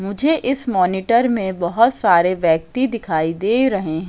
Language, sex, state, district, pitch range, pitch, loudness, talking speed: Hindi, female, Madhya Pradesh, Katni, 175-245 Hz, 200 Hz, -18 LUFS, 160 wpm